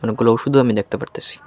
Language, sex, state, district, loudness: Bengali, male, Tripura, West Tripura, -18 LUFS